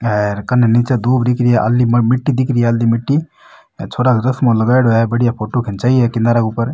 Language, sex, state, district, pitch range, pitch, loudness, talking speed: Rajasthani, male, Rajasthan, Nagaur, 115-125 Hz, 120 Hz, -14 LUFS, 215 wpm